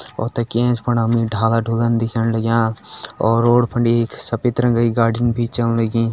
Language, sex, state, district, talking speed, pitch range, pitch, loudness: Garhwali, male, Uttarakhand, Tehri Garhwal, 165 wpm, 115-120 Hz, 115 Hz, -18 LUFS